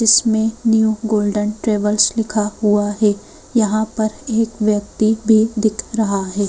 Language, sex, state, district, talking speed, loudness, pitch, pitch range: Hindi, female, Madhya Pradesh, Bhopal, 140 wpm, -17 LUFS, 215 Hz, 210-220 Hz